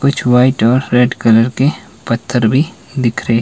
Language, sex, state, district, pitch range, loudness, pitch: Hindi, male, Himachal Pradesh, Shimla, 115-135 Hz, -13 LUFS, 125 Hz